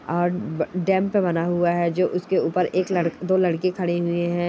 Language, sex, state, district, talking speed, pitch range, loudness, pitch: Hindi, male, Bihar, Bhagalpur, 225 wpm, 175-185 Hz, -22 LUFS, 175 Hz